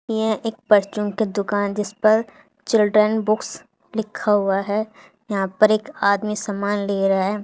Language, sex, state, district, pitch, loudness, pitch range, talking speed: Hindi, female, Haryana, Charkhi Dadri, 210 Hz, -20 LUFS, 200-215 Hz, 155 wpm